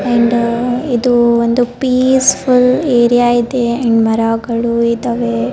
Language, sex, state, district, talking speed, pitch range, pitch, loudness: Kannada, female, Karnataka, Bellary, 110 wpm, 235-250 Hz, 240 Hz, -13 LUFS